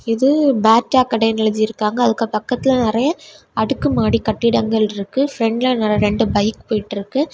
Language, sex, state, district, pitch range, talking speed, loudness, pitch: Tamil, female, Tamil Nadu, Kanyakumari, 215-255 Hz, 140 wpm, -17 LUFS, 225 Hz